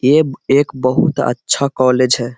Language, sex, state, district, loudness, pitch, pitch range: Hindi, male, Bihar, Gaya, -15 LUFS, 130 Hz, 125-140 Hz